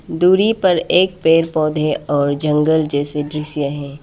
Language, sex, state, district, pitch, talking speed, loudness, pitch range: Hindi, female, Arunachal Pradesh, Lower Dibang Valley, 155 Hz, 150 wpm, -16 LUFS, 145-170 Hz